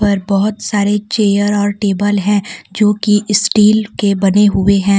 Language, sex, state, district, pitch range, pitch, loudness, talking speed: Hindi, female, Jharkhand, Deoghar, 200-210 Hz, 205 Hz, -13 LUFS, 170 wpm